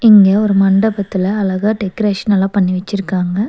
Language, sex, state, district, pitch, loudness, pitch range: Tamil, female, Tamil Nadu, Nilgiris, 200 Hz, -14 LUFS, 195-210 Hz